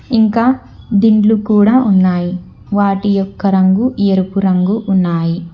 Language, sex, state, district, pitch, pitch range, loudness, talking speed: Telugu, female, Telangana, Hyderabad, 200 Hz, 185-220 Hz, -13 LUFS, 110 wpm